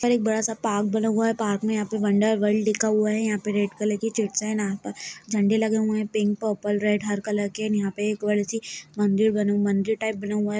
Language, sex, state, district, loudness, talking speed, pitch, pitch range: Hindi, female, Chhattisgarh, Kabirdham, -24 LUFS, 265 wpm, 210 Hz, 205-220 Hz